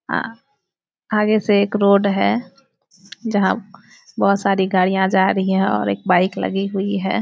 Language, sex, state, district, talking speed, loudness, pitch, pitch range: Hindi, female, Bihar, Araria, 160 wpm, -18 LUFS, 195 Hz, 190-210 Hz